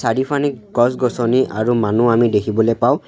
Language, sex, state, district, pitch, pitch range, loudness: Assamese, male, Assam, Sonitpur, 120 Hz, 115-130 Hz, -17 LUFS